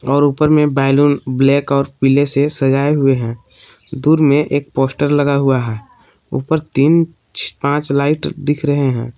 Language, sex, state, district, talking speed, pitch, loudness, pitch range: Hindi, male, Jharkhand, Palamu, 165 wpm, 140 Hz, -14 LUFS, 135-145 Hz